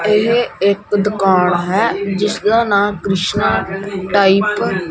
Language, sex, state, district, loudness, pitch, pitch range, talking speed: Punjabi, male, Punjab, Kapurthala, -15 LUFS, 200 Hz, 190-210 Hz, 110 wpm